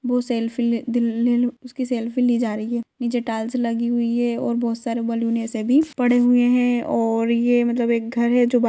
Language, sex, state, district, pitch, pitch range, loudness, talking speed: Hindi, female, Bihar, Bhagalpur, 240 Hz, 230-245 Hz, -21 LUFS, 220 wpm